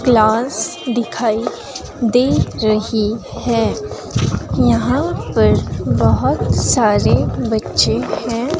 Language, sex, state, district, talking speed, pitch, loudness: Hindi, female, Himachal Pradesh, Shimla, 75 wpm, 215 Hz, -16 LUFS